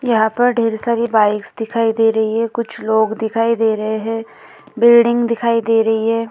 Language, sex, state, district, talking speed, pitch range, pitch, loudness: Hindi, female, Uttar Pradesh, Budaun, 190 wpm, 220-235 Hz, 225 Hz, -16 LUFS